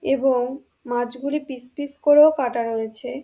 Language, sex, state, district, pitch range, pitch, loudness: Bengali, female, West Bengal, Dakshin Dinajpur, 245-285 Hz, 260 Hz, -21 LUFS